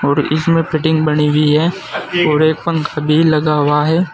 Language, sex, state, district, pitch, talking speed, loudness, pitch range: Hindi, male, Uttar Pradesh, Saharanpur, 155 Hz, 190 wpm, -14 LUFS, 150-165 Hz